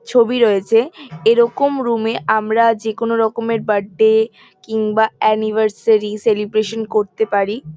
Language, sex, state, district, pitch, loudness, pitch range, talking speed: Bengali, female, West Bengal, North 24 Parganas, 220 Hz, -16 LUFS, 215-230 Hz, 110 wpm